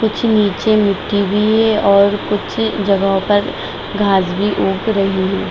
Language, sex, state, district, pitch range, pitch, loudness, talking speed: Hindi, female, Bihar, Sitamarhi, 195-215 Hz, 205 Hz, -15 LUFS, 165 wpm